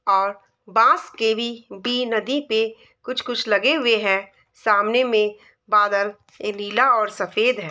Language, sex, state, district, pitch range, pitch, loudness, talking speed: Hindi, female, Bihar, East Champaran, 205-245 Hz, 220 Hz, -20 LUFS, 155 wpm